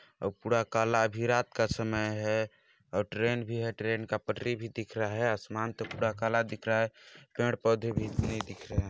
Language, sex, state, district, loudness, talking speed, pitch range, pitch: Hindi, male, Chhattisgarh, Balrampur, -32 LUFS, 220 wpm, 110-115 Hz, 115 Hz